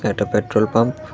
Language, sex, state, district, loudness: Bengali, male, Tripura, West Tripura, -19 LUFS